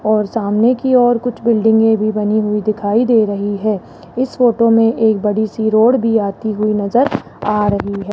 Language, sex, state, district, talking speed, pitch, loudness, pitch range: Hindi, male, Rajasthan, Jaipur, 200 wpm, 220 Hz, -15 LUFS, 210-230 Hz